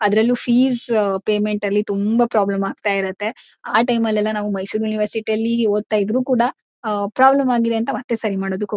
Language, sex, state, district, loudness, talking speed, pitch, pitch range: Kannada, female, Karnataka, Mysore, -19 LUFS, 170 wpm, 215 Hz, 205-235 Hz